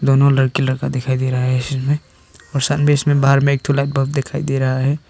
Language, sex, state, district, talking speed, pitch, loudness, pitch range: Hindi, male, Arunachal Pradesh, Papum Pare, 270 wpm, 140 Hz, -17 LUFS, 130-140 Hz